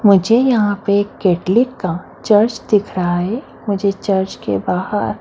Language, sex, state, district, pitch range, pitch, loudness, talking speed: Hindi, female, Maharashtra, Mumbai Suburban, 185-215 Hz, 200 Hz, -17 LUFS, 150 wpm